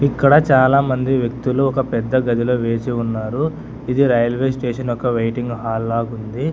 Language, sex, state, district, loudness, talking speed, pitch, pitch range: Telugu, male, Telangana, Hyderabad, -18 LUFS, 145 wpm, 125 Hz, 115-135 Hz